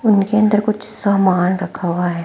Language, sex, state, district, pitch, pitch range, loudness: Hindi, female, Himachal Pradesh, Shimla, 200 Hz, 180-215 Hz, -16 LUFS